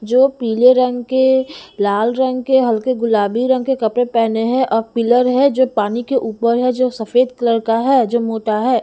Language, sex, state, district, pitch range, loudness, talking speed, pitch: Hindi, female, Bihar, Patna, 225-255 Hz, -16 LUFS, 205 wpm, 245 Hz